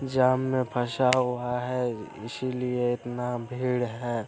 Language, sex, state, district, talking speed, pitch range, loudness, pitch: Hindi, male, Bihar, Araria, 125 wpm, 120-130 Hz, -28 LUFS, 125 Hz